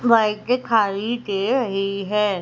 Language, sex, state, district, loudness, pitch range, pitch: Hindi, female, Madhya Pradesh, Umaria, -21 LUFS, 195-235 Hz, 210 Hz